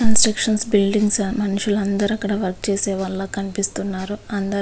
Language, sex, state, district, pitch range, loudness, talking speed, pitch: Telugu, female, Andhra Pradesh, Visakhapatnam, 195-210 Hz, -20 LUFS, 130 wpm, 200 Hz